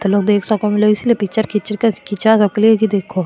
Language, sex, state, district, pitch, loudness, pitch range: Marwari, female, Rajasthan, Churu, 210 Hz, -15 LUFS, 205-220 Hz